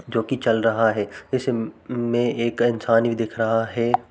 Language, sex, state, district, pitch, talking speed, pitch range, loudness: Hindi, male, Uttar Pradesh, Jalaun, 115 Hz, 190 wpm, 115-120 Hz, -22 LUFS